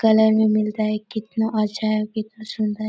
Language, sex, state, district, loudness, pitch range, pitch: Hindi, female, Chhattisgarh, Korba, -21 LUFS, 215-220 Hz, 215 Hz